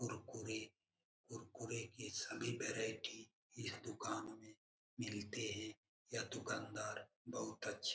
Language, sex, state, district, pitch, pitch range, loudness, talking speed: Hindi, male, Bihar, Jamui, 110 Hz, 110-115 Hz, -47 LUFS, 115 wpm